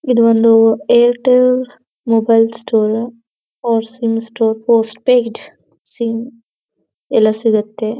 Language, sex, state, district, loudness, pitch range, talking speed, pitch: Kannada, female, Karnataka, Dharwad, -14 LUFS, 225-240 Hz, 90 wpm, 230 Hz